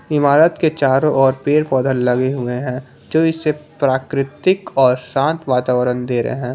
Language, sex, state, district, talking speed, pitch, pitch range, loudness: Hindi, male, Jharkhand, Palamu, 165 wpm, 135 Hz, 125-150 Hz, -17 LUFS